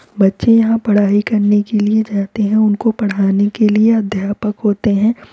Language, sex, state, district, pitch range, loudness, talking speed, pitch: Hindi, female, Uttar Pradesh, Varanasi, 205-220 Hz, -14 LUFS, 170 wpm, 210 Hz